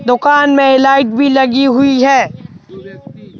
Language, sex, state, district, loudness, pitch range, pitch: Hindi, male, Madhya Pradesh, Bhopal, -10 LUFS, 210-275 Hz, 265 Hz